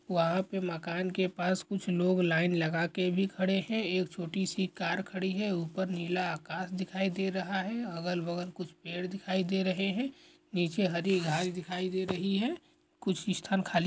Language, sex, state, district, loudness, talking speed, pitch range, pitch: Hindi, male, Chhattisgarh, Korba, -32 LUFS, 185 wpm, 175-190 Hz, 185 Hz